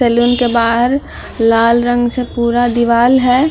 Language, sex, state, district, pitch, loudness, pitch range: Hindi, female, Uttar Pradesh, Muzaffarnagar, 240 Hz, -13 LUFS, 235-245 Hz